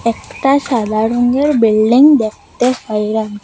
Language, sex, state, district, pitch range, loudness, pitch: Bengali, female, Assam, Hailakandi, 215-255 Hz, -13 LUFS, 230 Hz